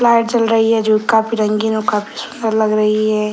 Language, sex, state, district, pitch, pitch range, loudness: Hindi, male, Bihar, Sitamarhi, 220 Hz, 215-225 Hz, -15 LUFS